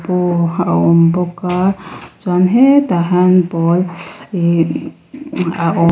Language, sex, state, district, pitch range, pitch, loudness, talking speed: Mizo, female, Mizoram, Aizawl, 170-185 Hz, 180 Hz, -14 LUFS, 120 wpm